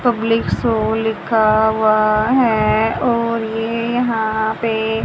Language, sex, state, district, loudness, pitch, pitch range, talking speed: Hindi, female, Haryana, Charkhi Dadri, -17 LUFS, 220 Hz, 220-230 Hz, 105 wpm